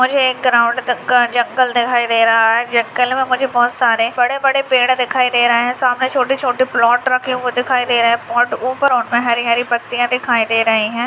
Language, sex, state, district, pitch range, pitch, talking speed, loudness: Hindi, female, Bihar, Madhepura, 235-255 Hz, 245 Hz, 200 wpm, -14 LUFS